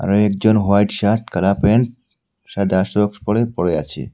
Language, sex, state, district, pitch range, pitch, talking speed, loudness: Bengali, male, Assam, Hailakandi, 100-110 Hz, 105 Hz, 145 wpm, -17 LUFS